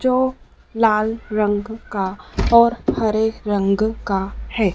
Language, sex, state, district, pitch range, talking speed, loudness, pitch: Hindi, female, Madhya Pradesh, Dhar, 205-225 Hz, 115 wpm, -19 LUFS, 215 Hz